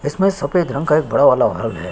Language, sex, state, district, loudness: Hindi, male, Chhattisgarh, Sukma, -16 LUFS